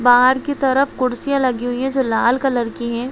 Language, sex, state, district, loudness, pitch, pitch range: Hindi, female, Chhattisgarh, Balrampur, -18 LUFS, 255 Hz, 245-270 Hz